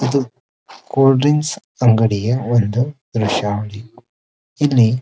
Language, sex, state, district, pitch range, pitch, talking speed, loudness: Kannada, male, Karnataka, Dharwad, 105-135 Hz, 120 Hz, 85 wpm, -17 LUFS